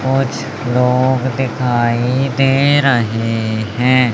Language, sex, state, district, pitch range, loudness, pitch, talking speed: Hindi, male, Madhya Pradesh, Umaria, 120-135 Hz, -15 LUFS, 130 Hz, 85 wpm